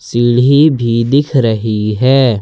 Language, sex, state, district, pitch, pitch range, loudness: Hindi, male, Jharkhand, Ranchi, 120 Hz, 115-135 Hz, -11 LUFS